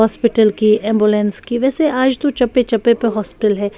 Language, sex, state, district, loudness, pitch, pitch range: Hindi, female, Bihar, West Champaran, -15 LUFS, 225 Hz, 215-250 Hz